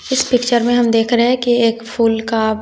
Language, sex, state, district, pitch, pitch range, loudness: Hindi, female, Bihar, West Champaran, 235 Hz, 225-245 Hz, -15 LUFS